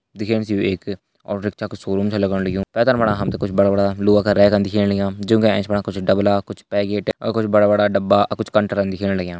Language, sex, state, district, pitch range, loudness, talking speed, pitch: Hindi, male, Uttarakhand, Uttarkashi, 100-105 Hz, -19 LUFS, 245 wpm, 100 Hz